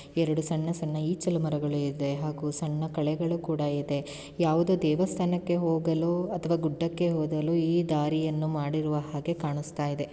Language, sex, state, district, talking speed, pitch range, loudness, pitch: Kannada, female, Karnataka, Shimoga, 125 wpm, 150-170 Hz, -29 LUFS, 155 Hz